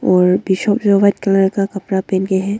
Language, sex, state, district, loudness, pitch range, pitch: Hindi, female, Arunachal Pradesh, Longding, -15 LUFS, 190-200 Hz, 195 Hz